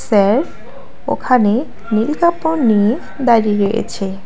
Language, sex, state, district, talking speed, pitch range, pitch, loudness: Bengali, female, West Bengal, Alipurduar, 70 wpm, 205-265 Hz, 225 Hz, -15 LUFS